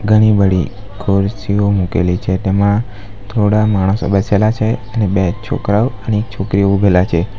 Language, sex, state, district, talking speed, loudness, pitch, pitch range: Gujarati, male, Gujarat, Valsad, 145 wpm, -15 LUFS, 100 Hz, 95-105 Hz